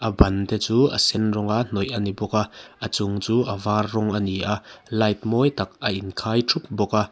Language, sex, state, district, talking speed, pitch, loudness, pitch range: Mizo, male, Mizoram, Aizawl, 245 wpm, 105 Hz, -23 LUFS, 100-110 Hz